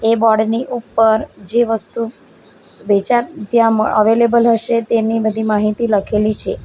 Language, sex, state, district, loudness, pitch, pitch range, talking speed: Gujarati, female, Gujarat, Valsad, -15 LUFS, 225 Hz, 215-235 Hz, 125 wpm